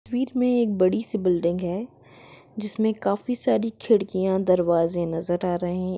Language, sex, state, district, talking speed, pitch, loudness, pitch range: Hindi, female, Jharkhand, Jamtara, 150 wpm, 190 Hz, -24 LUFS, 175-225 Hz